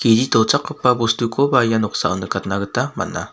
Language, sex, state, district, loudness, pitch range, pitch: Garo, male, Meghalaya, South Garo Hills, -18 LUFS, 105-125 Hz, 115 Hz